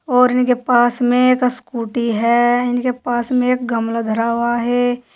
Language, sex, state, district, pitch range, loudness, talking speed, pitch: Hindi, female, Uttar Pradesh, Saharanpur, 235-250 Hz, -16 LUFS, 175 wpm, 245 Hz